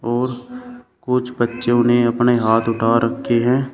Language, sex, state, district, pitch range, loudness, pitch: Hindi, male, Uttar Pradesh, Shamli, 115-125 Hz, -17 LUFS, 120 Hz